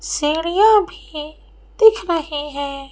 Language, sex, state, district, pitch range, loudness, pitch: Hindi, female, Madhya Pradesh, Bhopal, 295-390 Hz, -17 LUFS, 310 Hz